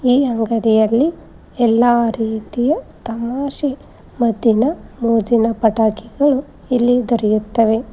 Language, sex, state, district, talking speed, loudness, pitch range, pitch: Kannada, female, Karnataka, Koppal, 75 wpm, -17 LUFS, 225-250 Hz, 235 Hz